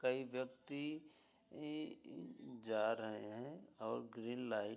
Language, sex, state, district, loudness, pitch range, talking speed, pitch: Hindi, male, Uttar Pradesh, Budaun, -46 LUFS, 110-140 Hz, 125 wpm, 125 Hz